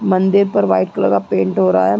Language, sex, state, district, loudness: Hindi, female, Chhattisgarh, Raigarh, -15 LUFS